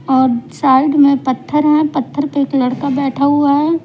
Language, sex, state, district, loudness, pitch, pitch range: Hindi, female, Punjab, Pathankot, -14 LUFS, 280 Hz, 265-290 Hz